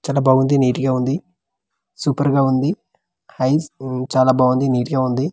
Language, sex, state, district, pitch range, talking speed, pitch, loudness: Telugu, male, Andhra Pradesh, Manyam, 130-140 Hz, 170 wpm, 135 Hz, -18 LUFS